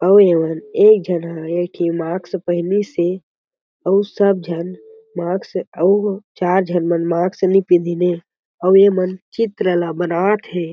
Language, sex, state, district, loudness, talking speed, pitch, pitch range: Chhattisgarhi, male, Chhattisgarh, Jashpur, -17 LUFS, 150 wpm, 180 Hz, 175-200 Hz